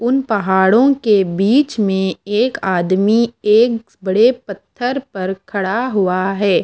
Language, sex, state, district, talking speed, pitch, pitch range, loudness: Hindi, female, Bihar, Kaimur, 125 wpm, 210 Hz, 190-240 Hz, -16 LUFS